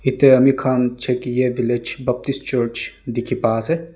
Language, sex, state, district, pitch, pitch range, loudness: Nagamese, male, Nagaland, Dimapur, 125 Hz, 120-135 Hz, -19 LUFS